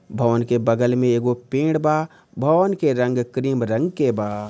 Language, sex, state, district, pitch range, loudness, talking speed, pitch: Bhojpuri, male, Bihar, Gopalganj, 120-155 Hz, -20 LUFS, 185 wpm, 125 Hz